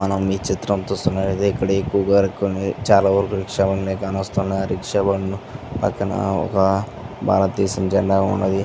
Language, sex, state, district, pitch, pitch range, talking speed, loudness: Telugu, male, Andhra Pradesh, Visakhapatnam, 95 Hz, 95-100 Hz, 125 wpm, -20 LUFS